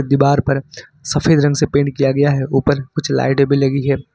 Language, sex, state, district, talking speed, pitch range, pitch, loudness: Hindi, male, Jharkhand, Ranchi, 215 wpm, 135-145 Hz, 140 Hz, -16 LUFS